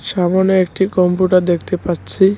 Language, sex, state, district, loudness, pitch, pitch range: Bengali, male, West Bengal, Cooch Behar, -15 LUFS, 185 Hz, 180-190 Hz